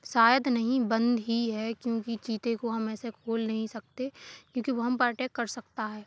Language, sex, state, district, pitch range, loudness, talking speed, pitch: Hindi, male, Chhattisgarh, Kabirdham, 225-245 Hz, -30 LUFS, 205 wpm, 230 Hz